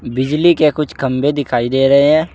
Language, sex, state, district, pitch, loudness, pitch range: Hindi, male, Uttar Pradesh, Saharanpur, 145 Hz, -14 LUFS, 130-150 Hz